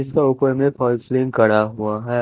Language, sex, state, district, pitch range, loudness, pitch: Hindi, male, Punjab, Kapurthala, 110-135 Hz, -18 LUFS, 125 Hz